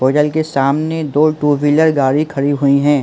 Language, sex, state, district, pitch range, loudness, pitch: Hindi, male, Chhattisgarh, Balrampur, 140-155 Hz, -14 LUFS, 145 Hz